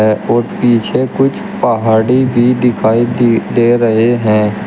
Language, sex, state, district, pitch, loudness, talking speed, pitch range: Hindi, male, Uttar Pradesh, Shamli, 120 Hz, -12 LUFS, 115 wpm, 110-120 Hz